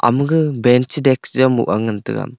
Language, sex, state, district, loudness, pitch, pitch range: Wancho, male, Arunachal Pradesh, Longding, -16 LUFS, 130 Hz, 120-135 Hz